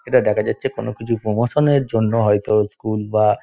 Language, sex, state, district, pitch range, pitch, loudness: Bengali, male, West Bengal, Dakshin Dinajpur, 105-120 Hz, 110 Hz, -19 LUFS